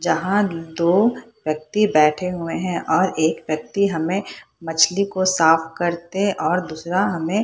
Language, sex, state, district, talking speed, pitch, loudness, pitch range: Hindi, female, Bihar, Purnia, 145 wpm, 175 Hz, -20 LUFS, 160-195 Hz